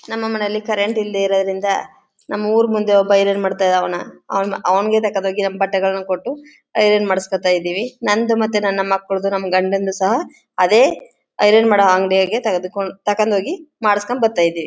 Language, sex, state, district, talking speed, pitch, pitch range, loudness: Kannada, female, Karnataka, Chamarajanagar, 145 wpm, 200 Hz, 190-215 Hz, -17 LUFS